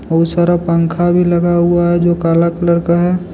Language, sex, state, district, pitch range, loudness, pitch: Hindi, male, Jharkhand, Deoghar, 170-175 Hz, -13 LUFS, 175 Hz